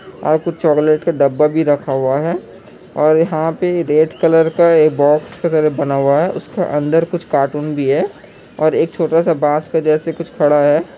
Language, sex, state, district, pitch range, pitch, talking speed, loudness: Hindi, male, Bihar, Kishanganj, 150-165 Hz, 155 Hz, 195 wpm, -15 LUFS